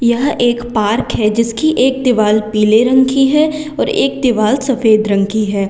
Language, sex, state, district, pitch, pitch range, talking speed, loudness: Hindi, female, Uttar Pradesh, Lalitpur, 240 Hz, 215-265 Hz, 190 wpm, -13 LUFS